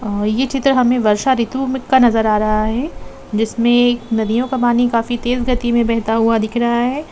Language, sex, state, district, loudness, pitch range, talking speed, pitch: Hindi, female, Jharkhand, Jamtara, -16 LUFS, 225-250 Hz, 200 wpm, 235 Hz